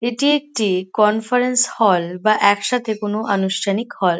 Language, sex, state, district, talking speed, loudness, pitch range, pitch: Bengali, female, West Bengal, North 24 Parganas, 140 wpm, -18 LUFS, 200-245 Hz, 215 Hz